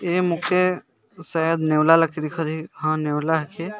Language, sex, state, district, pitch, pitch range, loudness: Sadri, male, Chhattisgarh, Jashpur, 165 Hz, 155-180 Hz, -22 LUFS